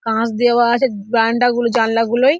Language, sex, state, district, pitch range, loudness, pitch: Bengali, female, West Bengal, Dakshin Dinajpur, 225-245 Hz, -16 LUFS, 235 Hz